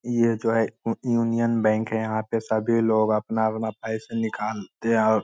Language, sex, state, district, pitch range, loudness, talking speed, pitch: Magahi, male, Bihar, Lakhisarai, 110-115 Hz, -24 LUFS, 195 wpm, 110 Hz